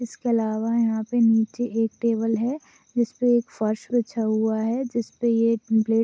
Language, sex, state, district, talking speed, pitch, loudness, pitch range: Hindi, female, Maharashtra, Aurangabad, 170 wpm, 230 Hz, -23 LUFS, 220-240 Hz